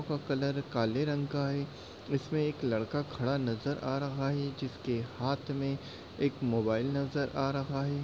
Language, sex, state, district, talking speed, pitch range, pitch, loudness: Hindi, male, Uttar Pradesh, Varanasi, 165 wpm, 130-140 Hz, 140 Hz, -33 LUFS